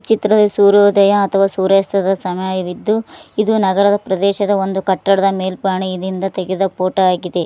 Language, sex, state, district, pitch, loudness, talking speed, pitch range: Kannada, female, Karnataka, Koppal, 195 Hz, -15 LUFS, 110 wpm, 190-200 Hz